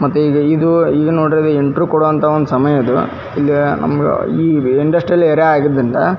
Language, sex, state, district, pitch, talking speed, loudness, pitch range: Kannada, male, Karnataka, Dharwad, 150 Hz, 125 wpm, -13 LUFS, 145-160 Hz